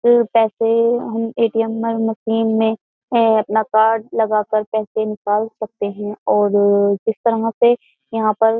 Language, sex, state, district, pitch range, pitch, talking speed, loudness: Hindi, female, Uttar Pradesh, Jyotiba Phule Nagar, 215-225 Hz, 225 Hz, 130 wpm, -17 LUFS